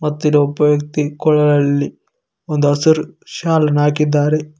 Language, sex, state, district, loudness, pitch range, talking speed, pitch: Kannada, male, Karnataka, Koppal, -15 LUFS, 145-155 Hz, 130 wpm, 150 Hz